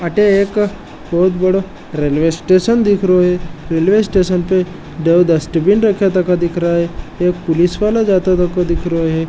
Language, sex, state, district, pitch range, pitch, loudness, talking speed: Marwari, male, Rajasthan, Nagaur, 170-195 Hz, 180 Hz, -14 LUFS, 170 wpm